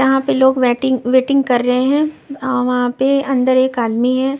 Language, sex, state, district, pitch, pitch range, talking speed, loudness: Hindi, female, Maharashtra, Washim, 260 Hz, 250-270 Hz, 190 wpm, -15 LUFS